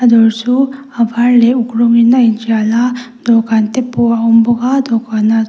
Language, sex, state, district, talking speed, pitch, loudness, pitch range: Mizo, female, Mizoram, Aizawl, 230 wpm, 235 Hz, -12 LUFS, 225-245 Hz